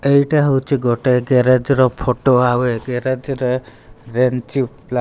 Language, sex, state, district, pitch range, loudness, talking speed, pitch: Odia, male, Odisha, Malkangiri, 125-135 Hz, -17 LUFS, 155 wpm, 125 Hz